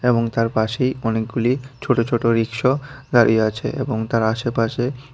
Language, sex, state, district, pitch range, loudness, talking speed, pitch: Bengali, female, Tripura, West Tripura, 115-130 Hz, -20 LUFS, 140 wpm, 120 Hz